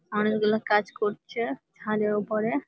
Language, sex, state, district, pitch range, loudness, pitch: Bengali, female, West Bengal, Malda, 210-215 Hz, -27 LUFS, 210 Hz